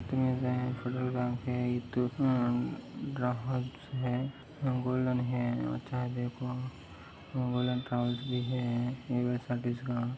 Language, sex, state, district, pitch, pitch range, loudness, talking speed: Hindi, male, Maharashtra, Sindhudurg, 125 Hz, 120-125 Hz, -33 LUFS, 55 wpm